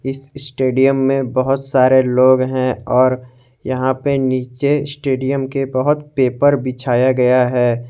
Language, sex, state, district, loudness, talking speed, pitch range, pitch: Hindi, male, Jharkhand, Garhwa, -16 LUFS, 135 wpm, 130-135 Hz, 130 Hz